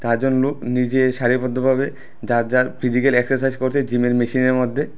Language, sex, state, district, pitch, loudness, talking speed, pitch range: Bengali, male, Tripura, West Tripura, 130 Hz, -19 LUFS, 170 wpm, 125-130 Hz